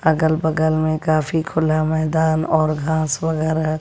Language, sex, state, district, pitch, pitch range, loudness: Hindi, female, Bihar, West Champaran, 160 Hz, 155-160 Hz, -19 LUFS